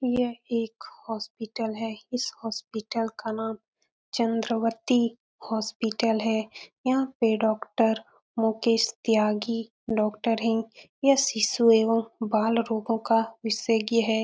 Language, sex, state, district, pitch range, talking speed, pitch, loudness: Hindi, female, Uttar Pradesh, Muzaffarnagar, 220-230 Hz, 110 wpm, 225 Hz, -26 LUFS